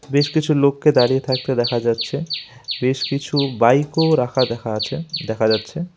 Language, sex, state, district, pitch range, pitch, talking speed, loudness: Bengali, male, West Bengal, Alipurduar, 120-150 Hz, 135 Hz, 150 wpm, -19 LUFS